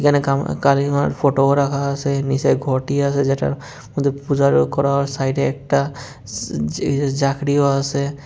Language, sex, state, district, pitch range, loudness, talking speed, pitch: Bengali, male, Tripura, West Tripura, 135-140 Hz, -19 LUFS, 150 wpm, 140 Hz